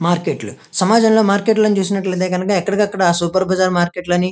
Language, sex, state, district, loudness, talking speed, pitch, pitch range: Telugu, male, Andhra Pradesh, Krishna, -16 LUFS, 180 wpm, 185 Hz, 180-205 Hz